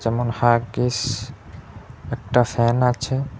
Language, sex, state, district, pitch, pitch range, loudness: Bengali, male, Assam, Hailakandi, 120 Hz, 115-125 Hz, -21 LUFS